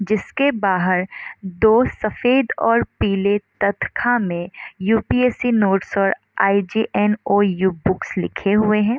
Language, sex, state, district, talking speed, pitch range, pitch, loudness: Hindi, female, Bihar, Gopalganj, 115 wpm, 195-225 Hz, 205 Hz, -19 LUFS